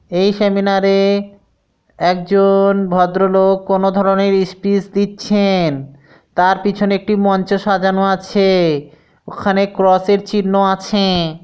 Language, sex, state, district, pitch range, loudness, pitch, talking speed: Bengali, male, West Bengal, Dakshin Dinajpur, 185-200 Hz, -14 LUFS, 195 Hz, 105 wpm